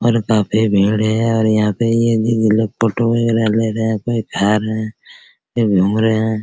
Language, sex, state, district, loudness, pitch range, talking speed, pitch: Hindi, male, Bihar, Araria, -16 LUFS, 110-115 Hz, 185 wpm, 110 Hz